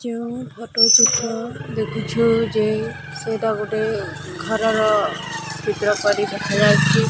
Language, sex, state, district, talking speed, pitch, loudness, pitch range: Odia, male, Odisha, Nuapada, 95 wpm, 215 Hz, -19 LUFS, 185-225 Hz